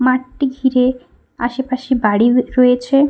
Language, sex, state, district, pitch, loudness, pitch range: Bengali, female, West Bengal, Paschim Medinipur, 255 Hz, -16 LUFS, 250-260 Hz